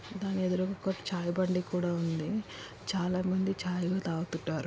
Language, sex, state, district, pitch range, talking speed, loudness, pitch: Telugu, male, Telangana, Karimnagar, 175-190 Hz, 155 wpm, -33 LUFS, 180 Hz